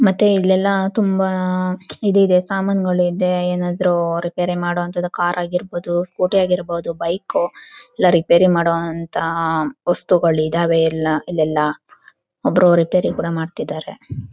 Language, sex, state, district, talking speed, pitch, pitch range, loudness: Kannada, female, Karnataka, Chamarajanagar, 110 wpm, 175 Hz, 170-185 Hz, -18 LUFS